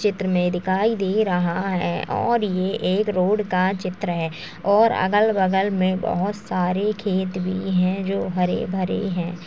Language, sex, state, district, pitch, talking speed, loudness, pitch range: Hindi, female, Uttar Pradesh, Jalaun, 190 Hz, 165 wpm, -22 LUFS, 180-205 Hz